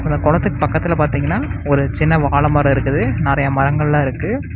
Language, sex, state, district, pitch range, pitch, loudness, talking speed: Tamil, male, Tamil Nadu, Namakkal, 140-150 Hz, 140 Hz, -16 LUFS, 145 wpm